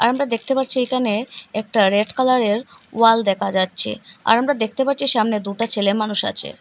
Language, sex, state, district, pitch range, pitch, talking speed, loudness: Bengali, female, Assam, Hailakandi, 210-255 Hz, 225 Hz, 180 wpm, -19 LUFS